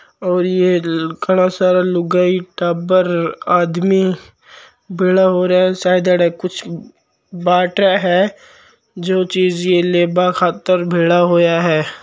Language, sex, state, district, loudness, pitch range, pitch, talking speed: Marwari, male, Rajasthan, Nagaur, -15 LUFS, 175-185 Hz, 180 Hz, 110 wpm